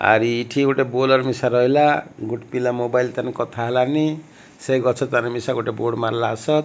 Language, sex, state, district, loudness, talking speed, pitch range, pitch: Odia, male, Odisha, Malkangiri, -20 LUFS, 170 wpm, 120-135 Hz, 125 Hz